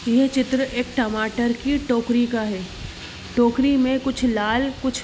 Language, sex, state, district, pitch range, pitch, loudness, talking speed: Hindi, female, Chhattisgarh, Bilaspur, 235-265 Hz, 245 Hz, -21 LUFS, 165 wpm